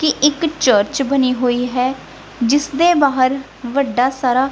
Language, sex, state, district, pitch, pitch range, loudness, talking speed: Punjabi, female, Punjab, Kapurthala, 270 Hz, 250-285 Hz, -16 LUFS, 145 wpm